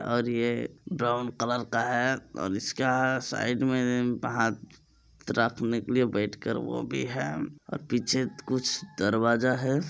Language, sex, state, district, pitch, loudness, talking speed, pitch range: Maithili, male, Bihar, Supaul, 120 Hz, -28 LUFS, 150 wpm, 115-130 Hz